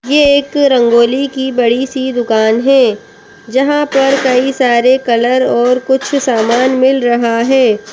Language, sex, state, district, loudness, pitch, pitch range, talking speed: Hindi, female, Madhya Pradesh, Bhopal, -11 LUFS, 255 Hz, 235-270 Hz, 145 wpm